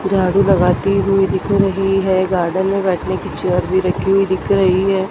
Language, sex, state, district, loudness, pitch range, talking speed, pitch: Hindi, female, Madhya Pradesh, Dhar, -16 LUFS, 185-195 Hz, 200 wpm, 190 Hz